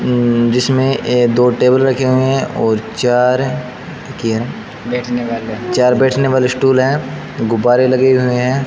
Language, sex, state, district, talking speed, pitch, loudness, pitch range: Hindi, male, Rajasthan, Bikaner, 140 wpm, 125 Hz, -14 LUFS, 120-130 Hz